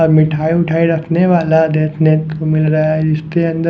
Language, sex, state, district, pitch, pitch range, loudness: Hindi, male, Haryana, Jhajjar, 160 Hz, 155-165 Hz, -14 LUFS